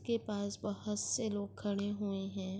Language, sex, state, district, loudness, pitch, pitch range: Urdu, female, Andhra Pradesh, Anantapur, -38 LUFS, 205 Hz, 200-210 Hz